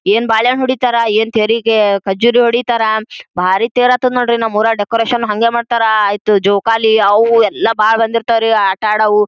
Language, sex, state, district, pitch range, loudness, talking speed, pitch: Kannada, female, Karnataka, Gulbarga, 215-235 Hz, -12 LUFS, 155 wpm, 225 Hz